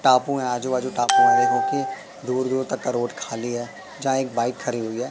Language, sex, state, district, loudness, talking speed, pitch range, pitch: Hindi, male, Madhya Pradesh, Katni, -23 LUFS, 245 wpm, 120-140 Hz, 130 Hz